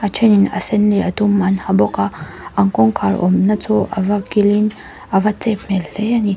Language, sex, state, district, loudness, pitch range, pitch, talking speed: Mizo, female, Mizoram, Aizawl, -16 LUFS, 190-210 Hz, 200 Hz, 215 wpm